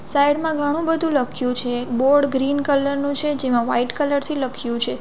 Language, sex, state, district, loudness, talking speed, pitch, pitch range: Gujarati, female, Gujarat, Valsad, -19 LUFS, 205 wpm, 280 Hz, 250-290 Hz